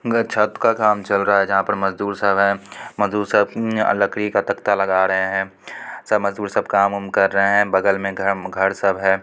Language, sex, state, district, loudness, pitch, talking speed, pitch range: Hindi, female, Bihar, Supaul, -19 LUFS, 100 Hz, 215 wpm, 95-105 Hz